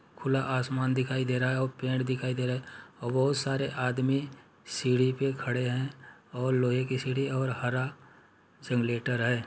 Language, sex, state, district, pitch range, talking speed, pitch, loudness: Hindi, male, Uttar Pradesh, Muzaffarnagar, 125-130 Hz, 170 wpm, 130 Hz, -30 LUFS